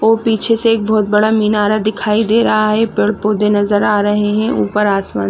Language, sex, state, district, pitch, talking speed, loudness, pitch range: Hindi, female, Chhattisgarh, Raigarh, 210 Hz, 215 wpm, -14 LUFS, 205-220 Hz